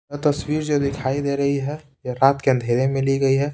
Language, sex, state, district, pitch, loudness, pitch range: Hindi, male, Bihar, Patna, 140 Hz, -21 LUFS, 135-145 Hz